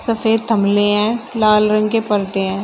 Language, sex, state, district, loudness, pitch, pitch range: Hindi, female, Uttar Pradesh, Shamli, -16 LUFS, 215 Hz, 205-225 Hz